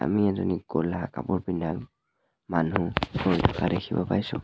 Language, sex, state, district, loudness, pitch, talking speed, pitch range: Assamese, male, Assam, Sonitpur, -27 LUFS, 90 Hz, 135 wpm, 85-100 Hz